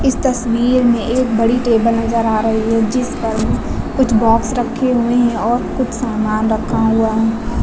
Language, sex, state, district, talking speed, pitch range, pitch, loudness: Hindi, female, Uttar Pradesh, Lucknow, 180 wpm, 225-245 Hz, 230 Hz, -15 LUFS